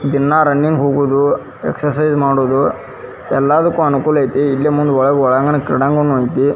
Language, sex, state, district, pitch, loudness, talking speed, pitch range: Kannada, male, Karnataka, Dharwad, 140 Hz, -14 LUFS, 110 wpm, 135-150 Hz